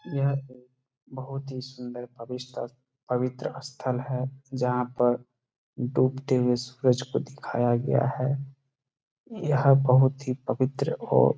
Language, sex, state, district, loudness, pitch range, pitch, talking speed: Hindi, male, Bihar, Saran, -27 LUFS, 125-135 Hz, 130 Hz, 130 wpm